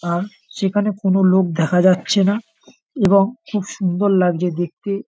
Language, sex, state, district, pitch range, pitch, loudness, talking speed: Bengali, male, West Bengal, North 24 Parganas, 180-205 Hz, 195 Hz, -18 LUFS, 155 wpm